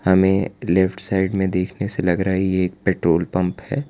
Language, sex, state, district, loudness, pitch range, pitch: Hindi, male, Gujarat, Valsad, -20 LUFS, 90-95 Hz, 95 Hz